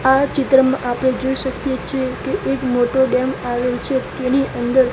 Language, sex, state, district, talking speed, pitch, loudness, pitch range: Gujarati, male, Gujarat, Gandhinagar, 170 wpm, 260 Hz, -18 LUFS, 250-265 Hz